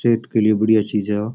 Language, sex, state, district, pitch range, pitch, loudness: Rajasthani, male, Rajasthan, Nagaur, 105-115 Hz, 110 Hz, -18 LUFS